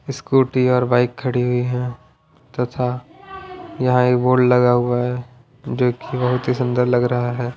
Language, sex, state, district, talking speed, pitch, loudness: Hindi, male, Punjab, Pathankot, 175 wpm, 125 Hz, -18 LUFS